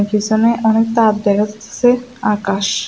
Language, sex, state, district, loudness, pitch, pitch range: Bengali, female, Tripura, West Tripura, -15 LUFS, 220 Hz, 210-230 Hz